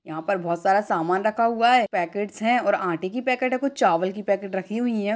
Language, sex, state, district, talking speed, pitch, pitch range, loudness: Hindi, female, Maharashtra, Dhule, 255 wpm, 205 Hz, 185-235 Hz, -23 LUFS